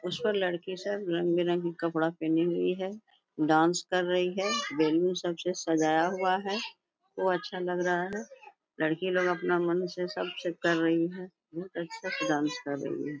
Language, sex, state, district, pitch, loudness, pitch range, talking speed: Hindi, female, Bihar, Bhagalpur, 180 Hz, -30 LUFS, 165-185 Hz, 185 wpm